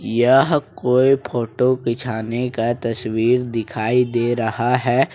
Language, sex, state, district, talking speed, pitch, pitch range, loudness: Hindi, male, Jharkhand, Ranchi, 115 wpm, 120 Hz, 115-125 Hz, -19 LUFS